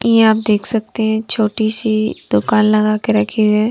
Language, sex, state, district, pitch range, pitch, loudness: Hindi, female, Punjab, Kapurthala, 215-220 Hz, 215 Hz, -15 LUFS